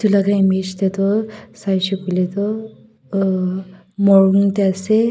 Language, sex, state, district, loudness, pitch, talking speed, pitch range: Nagamese, female, Nagaland, Kohima, -17 LUFS, 195 Hz, 155 wpm, 190-200 Hz